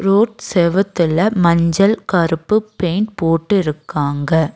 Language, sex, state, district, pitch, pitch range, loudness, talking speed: Tamil, female, Tamil Nadu, Nilgiris, 175 Hz, 165-205 Hz, -16 LUFS, 90 wpm